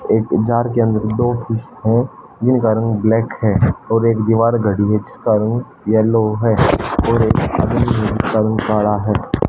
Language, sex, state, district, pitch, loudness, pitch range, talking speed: Hindi, male, Haryana, Jhajjar, 110 Hz, -16 LUFS, 110-115 Hz, 150 wpm